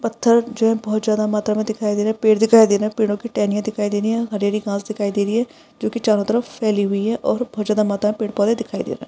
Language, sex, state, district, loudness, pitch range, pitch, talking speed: Hindi, female, Maharashtra, Pune, -19 LUFS, 205-225 Hz, 215 Hz, 280 wpm